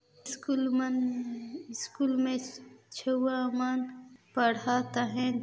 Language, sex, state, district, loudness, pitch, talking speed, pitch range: Chhattisgarhi, female, Chhattisgarh, Balrampur, -31 LUFS, 255 Hz, 90 wpm, 245-260 Hz